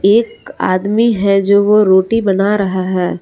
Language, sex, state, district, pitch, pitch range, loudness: Hindi, female, Jharkhand, Palamu, 200 Hz, 190-220 Hz, -13 LUFS